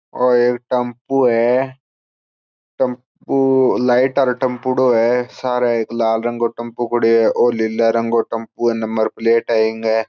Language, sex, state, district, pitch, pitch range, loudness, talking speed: Marwari, male, Rajasthan, Churu, 120 Hz, 115-125 Hz, -17 LUFS, 160 wpm